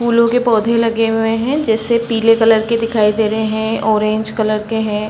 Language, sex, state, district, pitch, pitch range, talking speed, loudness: Hindi, female, Uttar Pradesh, Varanasi, 225 Hz, 215-230 Hz, 210 wpm, -15 LUFS